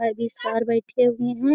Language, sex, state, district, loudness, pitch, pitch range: Hindi, female, Bihar, Jamui, -23 LUFS, 235 Hz, 230-245 Hz